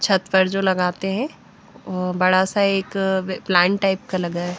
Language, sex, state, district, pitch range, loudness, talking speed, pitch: Hindi, female, Bihar, West Champaran, 185-195 Hz, -20 LUFS, 185 wpm, 190 Hz